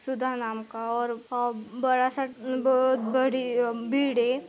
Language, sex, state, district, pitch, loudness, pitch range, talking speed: Hindi, female, Maharashtra, Aurangabad, 250 Hz, -27 LUFS, 235-260 Hz, 120 wpm